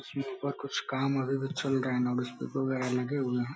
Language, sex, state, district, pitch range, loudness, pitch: Hindi, male, Uttar Pradesh, Deoria, 125-140 Hz, -32 LUFS, 135 Hz